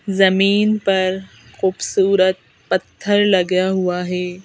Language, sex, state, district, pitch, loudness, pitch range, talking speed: Hindi, female, Madhya Pradesh, Bhopal, 190 Hz, -17 LUFS, 185-195 Hz, 95 wpm